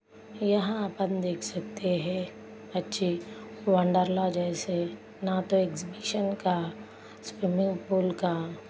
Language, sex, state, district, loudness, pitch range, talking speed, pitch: Hindi, female, Maharashtra, Sindhudurg, -29 LUFS, 175-195 Hz, 115 wpm, 185 Hz